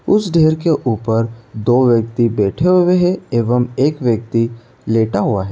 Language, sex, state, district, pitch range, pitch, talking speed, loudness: Hindi, male, Uttar Pradesh, Etah, 115-150 Hz, 120 Hz, 165 wpm, -15 LUFS